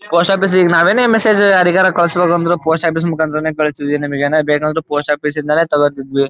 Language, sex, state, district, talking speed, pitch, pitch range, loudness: Kannada, male, Karnataka, Dharwad, 180 wpm, 160 Hz, 150-175 Hz, -13 LUFS